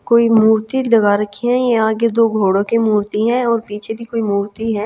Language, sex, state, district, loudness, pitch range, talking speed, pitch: Hindi, female, Chhattisgarh, Raipur, -15 LUFS, 210-230 Hz, 220 wpm, 220 Hz